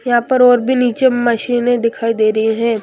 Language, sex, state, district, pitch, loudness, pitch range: Hindi, female, Haryana, Jhajjar, 240 Hz, -14 LUFS, 230-250 Hz